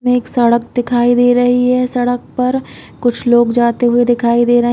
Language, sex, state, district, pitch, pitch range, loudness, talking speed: Hindi, female, Uttar Pradesh, Hamirpur, 245 Hz, 240-245 Hz, -13 LUFS, 215 wpm